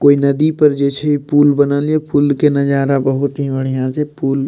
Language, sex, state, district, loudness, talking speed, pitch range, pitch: Maithili, male, Bihar, Madhepura, -15 LUFS, 225 wpm, 140-150 Hz, 140 Hz